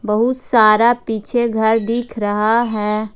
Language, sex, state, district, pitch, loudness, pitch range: Hindi, female, Jharkhand, Ranchi, 225 Hz, -16 LUFS, 215-235 Hz